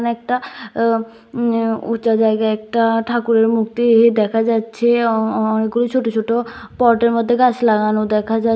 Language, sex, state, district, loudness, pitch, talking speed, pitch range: Bengali, female, Tripura, West Tripura, -16 LUFS, 230 Hz, 135 wpm, 225-235 Hz